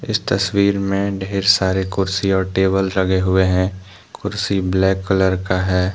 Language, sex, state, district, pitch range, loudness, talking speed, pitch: Hindi, male, Jharkhand, Deoghar, 95-100 Hz, -18 LUFS, 160 wpm, 95 Hz